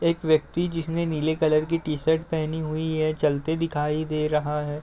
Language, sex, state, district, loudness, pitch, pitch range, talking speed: Hindi, male, Uttar Pradesh, Deoria, -25 LUFS, 155 Hz, 150-160 Hz, 185 wpm